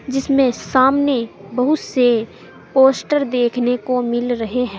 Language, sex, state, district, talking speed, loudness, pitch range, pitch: Hindi, female, Uttar Pradesh, Saharanpur, 125 wpm, -17 LUFS, 240-270 Hz, 250 Hz